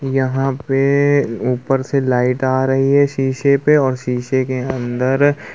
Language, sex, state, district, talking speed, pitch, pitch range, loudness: Hindi, male, Uttar Pradesh, Muzaffarnagar, 160 wpm, 135 Hz, 130-140 Hz, -16 LUFS